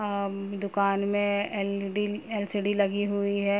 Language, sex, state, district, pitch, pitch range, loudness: Hindi, female, Uttar Pradesh, Jalaun, 200 Hz, 200-205 Hz, -28 LUFS